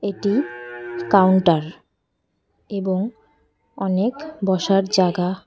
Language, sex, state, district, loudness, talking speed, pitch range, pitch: Bengali, female, West Bengal, Cooch Behar, -20 LUFS, 75 wpm, 180-200 Hz, 190 Hz